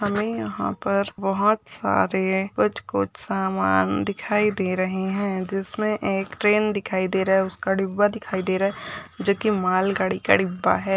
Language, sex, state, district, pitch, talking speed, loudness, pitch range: Hindi, male, Chhattisgarh, Bastar, 195 Hz, 175 wpm, -23 LUFS, 185-205 Hz